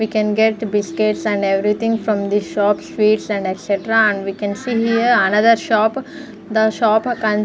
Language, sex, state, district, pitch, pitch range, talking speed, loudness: English, female, Punjab, Fazilka, 215 Hz, 205-220 Hz, 185 wpm, -17 LUFS